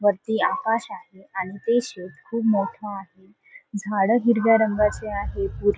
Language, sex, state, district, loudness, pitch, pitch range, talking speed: Marathi, female, Maharashtra, Solapur, -23 LUFS, 210 Hz, 195-230 Hz, 145 wpm